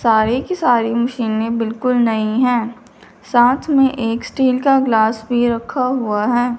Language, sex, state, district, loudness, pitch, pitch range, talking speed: Hindi, female, Punjab, Fazilka, -16 LUFS, 240 Hz, 225-255 Hz, 155 wpm